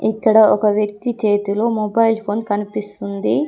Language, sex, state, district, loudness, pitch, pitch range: Telugu, female, Telangana, Komaram Bheem, -17 LUFS, 215 Hz, 205-225 Hz